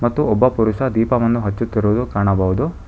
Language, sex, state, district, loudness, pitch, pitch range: Kannada, male, Karnataka, Bangalore, -17 LUFS, 115 Hz, 105-125 Hz